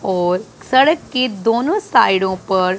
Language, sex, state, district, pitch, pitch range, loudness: Hindi, female, Punjab, Pathankot, 215 Hz, 185-255 Hz, -16 LUFS